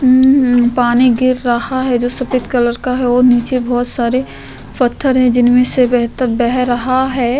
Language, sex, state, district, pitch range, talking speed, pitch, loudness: Hindi, female, Chhattisgarh, Korba, 245-255 Hz, 180 wpm, 250 Hz, -13 LUFS